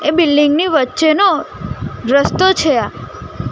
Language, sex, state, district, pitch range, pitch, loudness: Gujarati, female, Gujarat, Gandhinagar, 295-340 Hz, 315 Hz, -13 LUFS